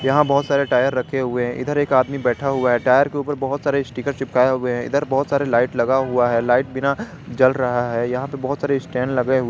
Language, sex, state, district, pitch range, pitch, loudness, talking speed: Hindi, male, Jharkhand, Garhwa, 125-140 Hz, 130 Hz, -19 LUFS, 260 wpm